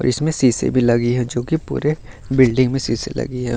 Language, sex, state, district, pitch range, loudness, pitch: Hindi, male, Bihar, Gaya, 120-135 Hz, -18 LUFS, 125 Hz